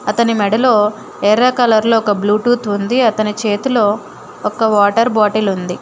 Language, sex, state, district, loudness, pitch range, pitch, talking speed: Telugu, female, Telangana, Hyderabad, -14 LUFS, 205-230 Hz, 215 Hz, 135 wpm